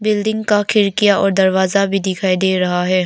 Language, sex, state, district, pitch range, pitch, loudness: Hindi, female, Arunachal Pradesh, Papum Pare, 190-205 Hz, 195 Hz, -15 LUFS